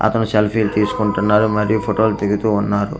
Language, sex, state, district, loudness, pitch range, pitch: Telugu, male, Andhra Pradesh, Manyam, -17 LUFS, 105-110 Hz, 105 Hz